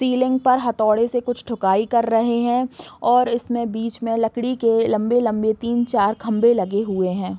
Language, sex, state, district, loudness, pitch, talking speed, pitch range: Hindi, female, Bihar, Gopalganj, -20 LUFS, 235 Hz, 195 wpm, 220-245 Hz